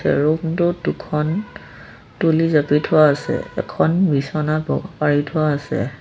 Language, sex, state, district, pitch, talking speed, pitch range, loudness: Assamese, female, Assam, Sonitpur, 155 Hz, 130 wpm, 150-165 Hz, -19 LUFS